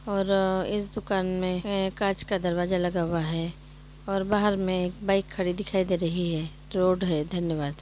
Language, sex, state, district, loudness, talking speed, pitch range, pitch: Hindi, female, Uttar Pradesh, Jyotiba Phule Nagar, -27 LUFS, 190 wpm, 170-195 Hz, 185 Hz